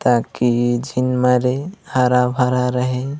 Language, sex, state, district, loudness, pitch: Chhattisgarhi, male, Chhattisgarh, Raigarh, -18 LUFS, 125 Hz